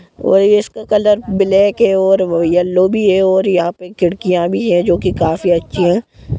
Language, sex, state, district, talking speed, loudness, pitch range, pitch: Hindi, female, Jharkhand, Jamtara, 190 wpm, -13 LUFS, 175-195 Hz, 185 Hz